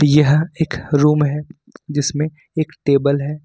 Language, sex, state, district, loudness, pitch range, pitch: Hindi, male, Jharkhand, Ranchi, -18 LUFS, 145-155 Hz, 150 Hz